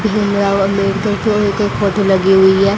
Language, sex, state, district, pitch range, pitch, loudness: Hindi, female, Haryana, Rohtak, 195-210 Hz, 200 Hz, -14 LUFS